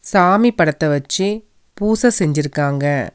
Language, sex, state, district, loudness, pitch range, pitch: Tamil, female, Tamil Nadu, Nilgiris, -16 LUFS, 145-210 Hz, 175 Hz